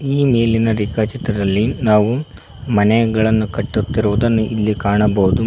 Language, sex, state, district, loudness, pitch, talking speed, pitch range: Kannada, male, Karnataka, Koppal, -16 LUFS, 110 Hz, 90 wpm, 105-115 Hz